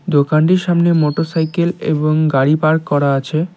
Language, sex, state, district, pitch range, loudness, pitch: Bengali, male, West Bengal, Cooch Behar, 150-170 Hz, -15 LUFS, 155 Hz